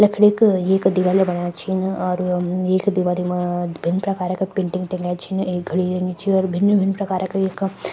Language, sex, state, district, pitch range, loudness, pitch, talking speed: Garhwali, female, Uttarakhand, Tehri Garhwal, 180-195 Hz, -20 LUFS, 185 Hz, 195 wpm